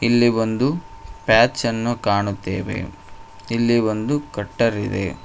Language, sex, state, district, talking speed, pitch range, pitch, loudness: Kannada, male, Karnataka, Koppal, 90 wpm, 100-120 Hz, 110 Hz, -20 LUFS